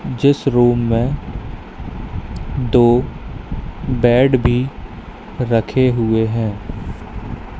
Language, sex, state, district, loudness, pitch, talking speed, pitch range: Hindi, male, Madhya Pradesh, Katni, -17 LUFS, 120 Hz, 70 wpm, 115-130 Hz